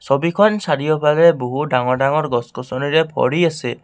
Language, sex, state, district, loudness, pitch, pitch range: Assamese, male, Assam, Kamrup Metropolitan, -17 LUFS, 150 Hz, 125-165 Hz